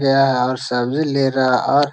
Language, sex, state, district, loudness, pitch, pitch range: Hindi, male, Bihar, Jahanabad, -17 LUFS, 135 Hz, 125-140 Hz